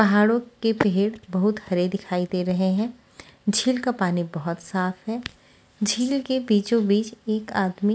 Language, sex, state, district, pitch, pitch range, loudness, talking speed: Hindi, female, Haryana, Charkhi Dadri, 205 Hz, 185-225 Hz, -24 LUFS, 150 wpm